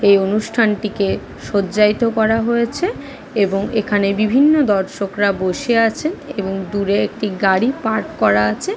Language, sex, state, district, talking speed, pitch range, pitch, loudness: Bengali, female, West Bengal, Kolkata, 125 wpm, 200-230 Hz, 210 Hz, -17 LUFS